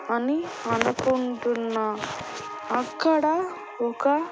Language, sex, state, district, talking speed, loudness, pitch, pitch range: Telugu, female, Andhra Pradesh, Annamaya, 55 wpm, -26 LUFS, 255 Hz, 235-310 Hz